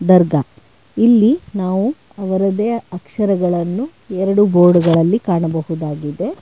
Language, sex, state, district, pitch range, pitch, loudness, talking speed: Kannada, female, Karnataka, Bangalore, 165-205 Hz, 185 Hz, -16 LUFS, 85 wpm